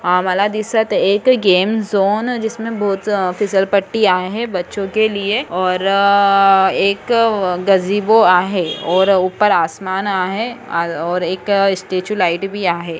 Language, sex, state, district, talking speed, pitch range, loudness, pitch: Marathi, female, Maharashtra, Sindhudurg, 110 wpm, 185-210 Hz, -15 LUFS, 195 Hz